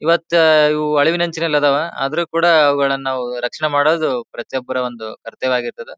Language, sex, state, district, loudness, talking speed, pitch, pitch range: Kannada, male, Karnataka, Bijapur, -17 LUFS, 120 wpm, 145 Hz, 130-165 Hz